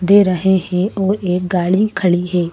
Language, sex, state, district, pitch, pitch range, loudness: Hindi, female, Madhya Pradesh, Bhopal, 185 Hz, 180-195 Hz, -16 LUFS